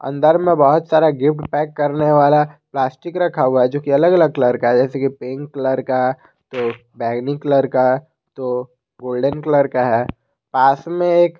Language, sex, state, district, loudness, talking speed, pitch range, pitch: Hindi, male, Jharkhand, Garhwa, -17 LUFS, 190 wpm, 130-150 Hz, 140 Hz